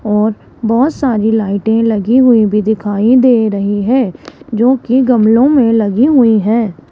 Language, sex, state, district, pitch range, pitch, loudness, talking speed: Hindi, female, Rajasthan, Jaipur, 210-250 Hz, 225 Hz, -11 LUFS, 150 wpm